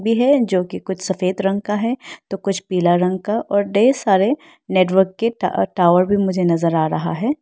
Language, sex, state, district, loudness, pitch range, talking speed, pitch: Hindi, female, Arunachal Pradesh, Lower Dibang Valley, -18 LUFS, 185-225 Hz, 200 wpm, 195 Hz